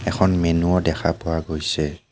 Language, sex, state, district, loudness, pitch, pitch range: Assamese, male, Assam, Kamrup Metropolitan, -21 LUFS, 85 Hz, 80-90 Hz